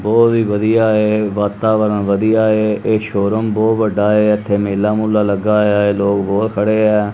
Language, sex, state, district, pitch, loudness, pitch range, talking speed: Punjabi, male, Punjab, Kapurthala, 105 Hz, -15 LUFS, 105-110 Hz, 185 wpm